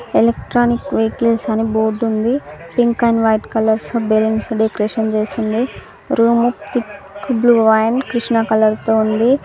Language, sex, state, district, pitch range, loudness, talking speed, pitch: Telugu, female, Telangana, Karimnagar, 220-235 Hz, -16 LUFS, 135 wpm, 225 Hz